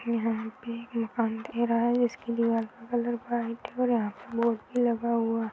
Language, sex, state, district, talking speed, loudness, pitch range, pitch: Hindi, female, Chhattisgarh, Bastar, 250 wpm, -29 LUFS, 230-240 Hz, 235 Hz